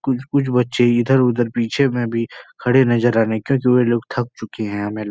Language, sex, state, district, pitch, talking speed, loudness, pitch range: Hindi, male, Uttar Pradesh, Etah, 120 Hz, 225 wpm, -18 LUFS, 115-130 Hz